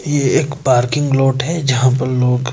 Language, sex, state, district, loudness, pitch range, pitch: Hindi, male, Madhya Pradesh, Bhopal, -15 LUFS, 130-145 Hz, 130 Hz